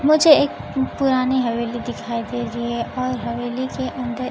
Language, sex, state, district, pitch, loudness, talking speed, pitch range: Hindi, female, Bihar, Kaimur, 250 Hz, -21 LUFS, 165 wpm, 235-260 Hz